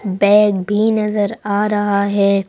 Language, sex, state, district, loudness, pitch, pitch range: Hindi, female, Madhya Pradesh, Bhopal, -15 LUFS, 205 Hz, 200-210 Hz